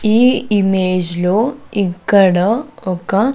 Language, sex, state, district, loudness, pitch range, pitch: Telugu, female, Andhra Pradesh, Sri Satya Sai, -15 LUFS, 185-230 Hz, 200 Hz